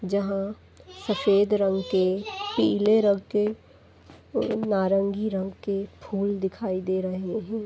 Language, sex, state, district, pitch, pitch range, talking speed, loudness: Hindi, female, Uttar Pradesh, Etah, 200 Hz, 190-210 Hz, 125 wpm, -26 LUFS